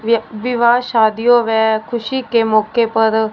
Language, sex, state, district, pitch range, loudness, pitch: Hindi, female, Punjab, Fazilka, 220-240 Hz, -15 LUFS, 225 Hz